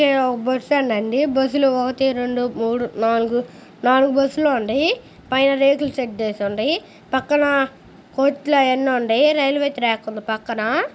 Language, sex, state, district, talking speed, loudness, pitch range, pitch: Telugu, female, Andhra Pradesh, Guntur, 150 wpm, -19 LUFS, 240-280 Hz, 260 Hz